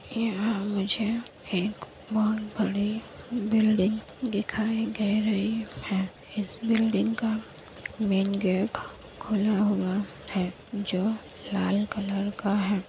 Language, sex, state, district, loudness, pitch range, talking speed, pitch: Hindi, female, Bihar, Kishanganj, -28 LUFS, 200-220 Hz, 105 wpm, 210 Hz